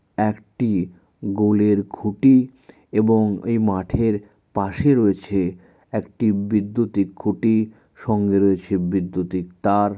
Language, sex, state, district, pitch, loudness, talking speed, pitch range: Bengali, male, West Bengal, Malda, 105 Hz, -21 LUFS, 95 wpm, 95-110 Hz